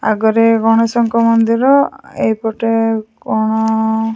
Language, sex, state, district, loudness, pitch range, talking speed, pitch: Odia, female, Odisha, Khordha, -14 LUFS, 220-230 Hz, 85 wpm, 225 Hz